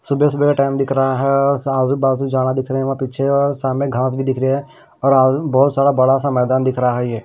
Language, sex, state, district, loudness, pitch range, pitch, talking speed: Hindi, male, Maharashtra, Washim, -16 LUFS, 130-140 Hz, 135 Hz, 255 wpm